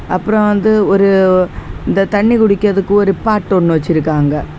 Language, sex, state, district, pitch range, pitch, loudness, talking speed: Tamil, female, Tamil Nadu, Kanyakumari, 185-210 Hz, 195 Hz, -12 LUFS, 130 wpm